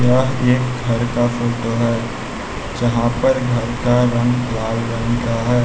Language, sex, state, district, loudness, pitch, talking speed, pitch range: Hindi, male, Bihar, West Champaran, -18 LUFS, 120 Hz, 160 wpm, 115-125 Hz